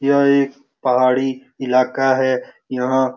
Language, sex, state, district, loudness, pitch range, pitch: Hindi, male, Bihar, Saran, -18 LUFS, 130-135 Hz, 130 Hz